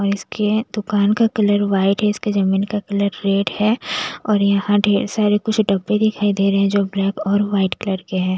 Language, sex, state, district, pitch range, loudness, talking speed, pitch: Hindi, female, Bihar, West Champaran, 195-210 Hz, -18 LUFS, 215 wpm, 205 Hz